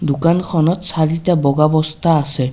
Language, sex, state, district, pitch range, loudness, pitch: Assamese, male, Assam, Kamrup Metropolitan, 150-170 Hz, -16 LUFS, 160 Hz